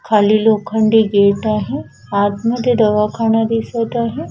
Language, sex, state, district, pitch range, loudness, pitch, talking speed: Marathi, female, Maharashtra, Washim, 210-230 Hz, -15 LUFS, 220 Hz, 110 wpm